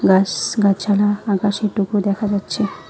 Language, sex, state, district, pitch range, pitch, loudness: Bengali, female, West Bengal, Alipurduar, 200-205 Hz, 205 Hz, -18 LUFS